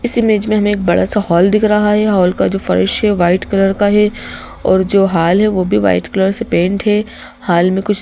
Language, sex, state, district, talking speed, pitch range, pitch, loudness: Hindi, female, Madhya Pradesh, Bhopal, 260 wpm, 180-210 Hz, 195 Hz, -13 LUFS